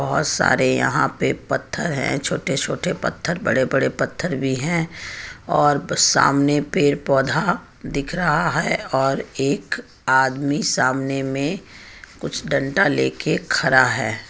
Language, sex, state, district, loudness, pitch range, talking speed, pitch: Hindi, female, Jharkhand, Ranchi, -20 LUFS, 130-150 Hz, 130 wpm, 140 Hz